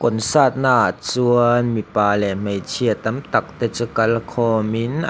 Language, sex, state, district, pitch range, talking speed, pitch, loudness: Mizo, male, Mizoram, Aizawl, 110-120 Hz, 165 wpm, 115 Hz, -19 LUFS